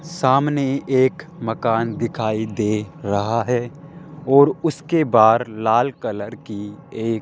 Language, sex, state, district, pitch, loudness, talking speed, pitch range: Hindi, male, Rajasthan, Jaipur, 120 Hz, -19 LUFS, 125 wpm, 110-140 Hz